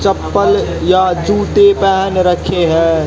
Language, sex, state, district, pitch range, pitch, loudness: Hindi, female, Haryana, Jhajjar, 170-195 Hz, 185 Hz, -12 LUFS